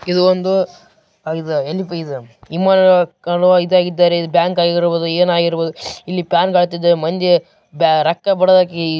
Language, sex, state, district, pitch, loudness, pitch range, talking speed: Kannada, male, Karnataka, Raichur, 175 Hz, -15 LUFS, 165-180 Hz, 105 wpm